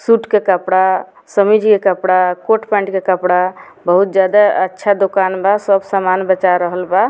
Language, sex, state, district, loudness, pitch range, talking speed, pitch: Bhojpuri, female, Bihar, Muzaffarpur, -14 LUFS, 185-205 Hz, 175 wpm, 190 Hz